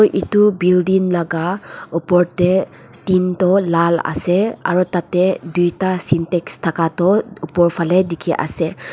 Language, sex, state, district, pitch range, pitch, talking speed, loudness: Nagamese, female, Nagaland, Dimapur, 170-185 Hz, 180 Hz, 120 wpm, -17 LUFS